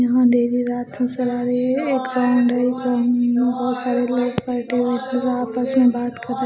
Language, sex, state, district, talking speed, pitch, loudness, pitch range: Hindi, female, Odisha, Malkangiri, 175 wpm, 245 Hz, -20 LUFS, 245-255 Hz